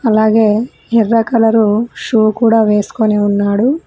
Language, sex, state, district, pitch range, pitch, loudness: Telugu, female, Telangana, Mahabubabad, 215-230 Hz, 225 Hz, -12 LUFS